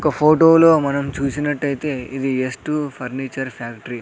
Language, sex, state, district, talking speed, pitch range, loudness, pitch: Telugu, male, Andhra Pradesh, Sri Satya Sai, 150 wpm, 130-150 Hz, -18 LUFS, 140 Hz